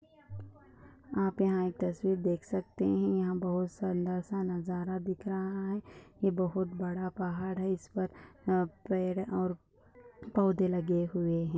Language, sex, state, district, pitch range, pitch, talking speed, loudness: Hindi, female, Maharashtra, Dhule, 180-190 Hz, 185 Hz, 145 wpm, -33 LUFS